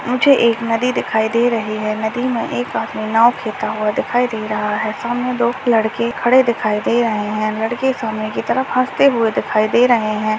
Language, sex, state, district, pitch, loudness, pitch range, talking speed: Hindi, male, Rajasthan, Churu, 230 Hz, -17 LUFS, 215-245 Hz, 210 wpm